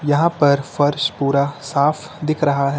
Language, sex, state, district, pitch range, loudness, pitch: Hindi, male, Uttar Pradesh, Lucknow, 140-155 Hz, -18 LUFS, 145 Hz